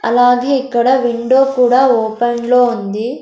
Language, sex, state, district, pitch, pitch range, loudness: Telugu, female, Andhra Pradesh, Sri Satya Sai, 245 Hz, 235-255 Hz, -13 LUFS